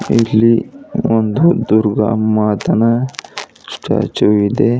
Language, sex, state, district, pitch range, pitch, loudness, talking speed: Kannada, female, Karnataka, Bidar, 110-125 Hz, 115 Hz, -14 LUFS, 75 wpm